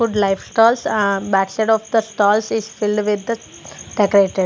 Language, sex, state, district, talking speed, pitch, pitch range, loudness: English, female, Punjab, Kapurthala, 175 wpm, 210 Hz, 200-225 Hz, -17 LUFS